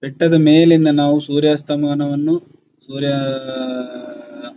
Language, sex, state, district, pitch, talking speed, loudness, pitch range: Kannada, male, Karnataka, Shimoga, 150 Hz, 80 wpm, -16 LUFS, 140-165 Hz